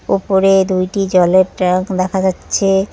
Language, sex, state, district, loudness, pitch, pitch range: Bengali, female, West Bengal, Cooch Behar, -14 LUFS, 190 Hz, 185-195 Hz